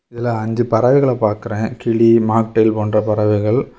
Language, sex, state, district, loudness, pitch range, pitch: Tamil, male, Tamil Nadu, Kanyakumari, -16 LUFS, 105-120 Hz, 110 Hz